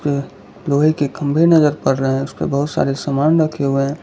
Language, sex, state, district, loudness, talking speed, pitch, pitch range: Hindi, male, Gujarat, Valsad, -17 LUFS, 210 wpm, 145 Hz, 140-155 Hz